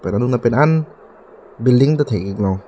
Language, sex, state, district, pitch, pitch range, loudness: Karbi, male, Assam, Karbi Anglong, 125 Hz, 100-145 Hz, -16 LUFS